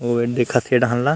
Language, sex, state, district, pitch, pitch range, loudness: Chhattisgarhi, male, Chhattisgarh, Rajnandgaon, 120 Hz, 120-125 Hz, -19 LUFS